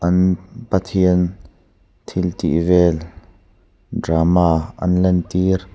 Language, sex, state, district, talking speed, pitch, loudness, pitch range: Mizo, male, Mizoram, Aizawl, 95 wpm, 90 Hz, -18 LUFS, 85-95 Hz